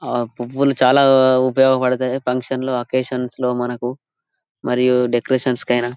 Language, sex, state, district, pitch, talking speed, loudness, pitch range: Telugu, male, Telangana, Karimnagar, 125 Hz, 110 wpm, -18 LUFS, 125-130 Hz